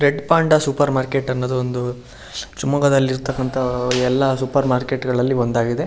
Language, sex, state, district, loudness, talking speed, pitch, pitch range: Kannada, male, Karnataka, Shimoga, -19 LUFS, 155 wpm, 130 Hz, 125-140 Hz